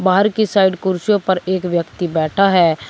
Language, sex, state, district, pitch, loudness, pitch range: Hindi, male, Uttar Pradesh, Shamli, 185 Hz, -16 LUFS, 175-195 Hz